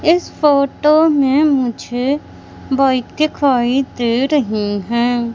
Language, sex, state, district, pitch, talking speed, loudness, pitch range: Hindi, female, Madhya Pradesh, Katni, 270 Hz, 100 wpm, -15 LUFS, 240-295 Hz